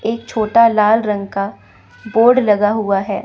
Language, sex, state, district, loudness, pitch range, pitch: Hindi, female, Chandigarh, Chandigarh, -15 LUFS, 200-225 Hz, 210 Hz